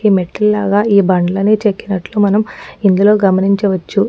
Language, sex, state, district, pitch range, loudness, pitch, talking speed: Telugu, female, Telangana, Nalgonda, 195-210 Hz, -13 LUFS, 200 Hz, 115 wpm